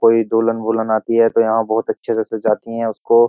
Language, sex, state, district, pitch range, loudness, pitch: Hindi, male, Uttar Pradesh, Jyotiba Phule Nagar, 110-115 Hz, -17 LUFS, 115 Hz